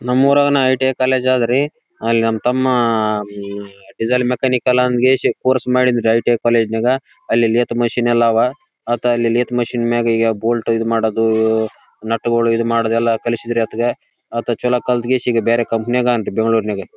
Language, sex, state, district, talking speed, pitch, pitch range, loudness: Kannada, male, Karnataka, Raichur, 175 wpm, 120 Hz, 115-125 Hz, -16 LUFS